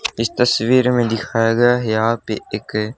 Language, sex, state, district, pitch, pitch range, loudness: Hindi, male, Haryana, Charkhi Dadri, 115 Hz, 110-120 Hz, -17 LUFS